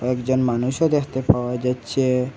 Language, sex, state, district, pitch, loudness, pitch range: Bengali, male, Assam, Hailakandi, 125 Hz, -21 LUFS, 125-135 Hz